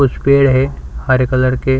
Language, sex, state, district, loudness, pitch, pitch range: Hindi, male, Chhattisgarh, Sukma, -13 LUFS, 130 Hz, 130-140 Hz